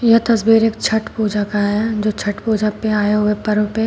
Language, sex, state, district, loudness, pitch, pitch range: Hindi, female, Uttar Pradesh, Shamli, -17 LUFS, 215 Hz, 210-225 Hz